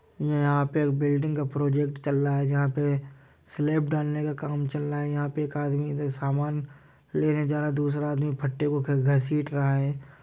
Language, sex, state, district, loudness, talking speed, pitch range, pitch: Hindi, male, Uttar Pradesh, Jyotiba Phule Nagar, -27 LUFS, 200 wpm, 140-150 Hz, 145 Hz